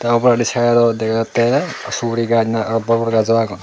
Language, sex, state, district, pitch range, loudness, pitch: Chakma, male, Tripura, Dhalai, 115-120 Hz, -16 LUFS, 115 Hz